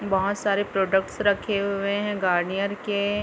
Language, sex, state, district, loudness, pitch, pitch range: Hindi, female, Chhattisgarh, Bilaspur, -24 LUFS, 200 Hz, 195-205 Hz